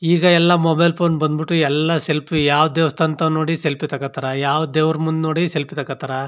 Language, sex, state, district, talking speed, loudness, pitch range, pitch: Kannada, male, Karnataka, Chamarajanagar, 190 wpm, -18 LUFS, 150-165 Hz, 155 Hz